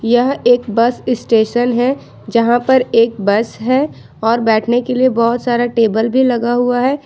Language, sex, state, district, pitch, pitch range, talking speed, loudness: Hindi, female, Jharkhand, Ranchi, 240 Hz, 230-250 Hz, 180 wpm, -14 LUFS